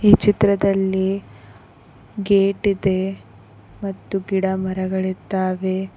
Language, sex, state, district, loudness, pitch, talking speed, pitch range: Kannada, female, Karnataka, Koppal, -20 LUFS, 190 Hz, 60 wpm, 185-200 Hz